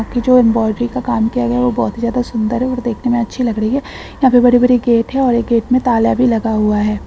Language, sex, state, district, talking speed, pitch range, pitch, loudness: Hindi, female, Maharashtra, Solapur, 295 wpm, 225-250 Hz, 240 Hz, -14 LUFS